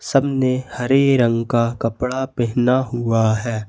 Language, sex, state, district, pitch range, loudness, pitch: Hindi, male, Jharkhand, Ranchi, 115-130 Hz, -19 LUFS, 120 Hz